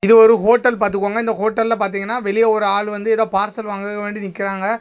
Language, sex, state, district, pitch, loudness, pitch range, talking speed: Tamil, male, Tamil Nadu, Kanyakumari, 210 Hz, -17 LUFS, 200-225 Hz, 200 wpm